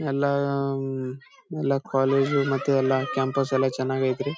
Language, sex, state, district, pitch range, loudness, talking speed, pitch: Kannada, male, Karnataka, Bijapur, 130-140 Hz, -25 LUFS, 165 wpm, 135 Hz